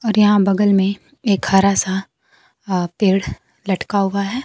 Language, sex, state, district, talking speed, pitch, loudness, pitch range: Hindi, female, Bihar, Kaimur, 160 wpm, 200 Hz, -17 LUFS, 190-205 Hz